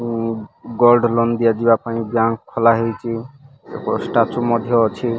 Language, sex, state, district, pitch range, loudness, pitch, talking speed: Odia, male, Odisha, Malkangiri, 115-120 Hz, -18 LUFS, 115 Hz, 125 wpm